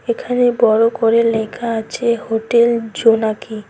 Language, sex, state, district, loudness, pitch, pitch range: Bengali, female, West Bengal, Cooch Behar, -16 LUFS, 230 Hz, 225-235 Hz